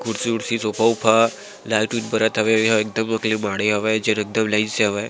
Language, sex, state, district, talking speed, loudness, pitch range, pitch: Chhattisgarhi, male, Chhattisgarh, Sarguja, 190 wpm, -20 LUFS, 105-110 Hz, 110 Hz